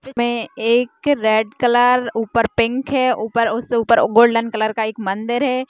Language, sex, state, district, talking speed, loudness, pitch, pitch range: Hindi, female, Bihar, Madhepura, 180 wpm, -17 LUFS, 235 Hz, 225-245 Hz